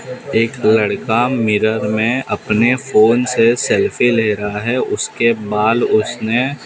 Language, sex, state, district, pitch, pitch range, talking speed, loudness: Hindi, male, Maharashtra, Mumbai Suburban, 115 Hz, 110-125 Hz, 125 wpm, -15 LUFS